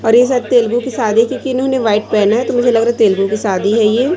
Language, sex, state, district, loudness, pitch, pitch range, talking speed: Hindi, female, Chhattisgarh, Raipur, -13 LUFS, 230 Hz, 215-250 Hz, 330 wpm